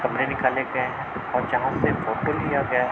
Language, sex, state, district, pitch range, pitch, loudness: Hindi, male, Uttar Pradesh, Budaun, 130-140 Hz, 130 Hz, -24 LUFS